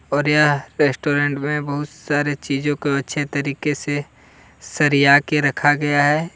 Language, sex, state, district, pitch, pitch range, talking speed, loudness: Hindi, male, Jharkhand, Deoghar, 145 Hz, 140-150 Hz, 140 wpm, -19 LUFS